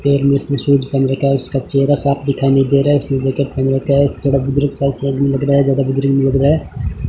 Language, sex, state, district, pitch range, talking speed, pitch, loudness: Hindi, male, Rajasthan, Bikaner, 135-140 Hz, 295 wpm, 140 Hz, -15 LUFS